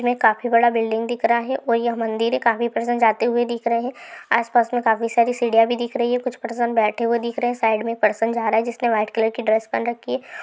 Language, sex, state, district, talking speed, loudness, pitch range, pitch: Hindi, female, Andhra Pradesh, Anantapur, 305 wpm, -20 LUFS, 225-240 Hz, 235 Hz